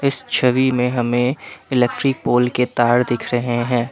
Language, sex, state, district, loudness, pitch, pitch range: Hindi, male, Assam, Kamrup Metropolitan, -18 LUFS, 125 Hz, 120-125 Hz